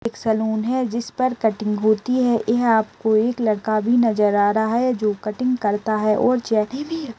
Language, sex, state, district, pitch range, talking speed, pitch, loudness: Hindi, female, Uttar Pradesh, Deoria, 215-245 Hz, 185 wpm, 220 Hz, -20 LUFS